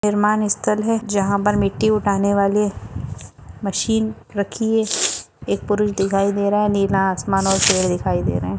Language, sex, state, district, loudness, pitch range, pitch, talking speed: Hindi, female, Maharashtra, Dhule, -19 LUFS, 195-210 Hz, 200 Hz, 155 wpm